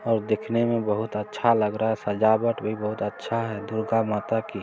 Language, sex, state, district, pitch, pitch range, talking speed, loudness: Maithili, male, Bihar, Supaul, 110 Hz, 105-115 Hz, 205 wpm, -25 LUFS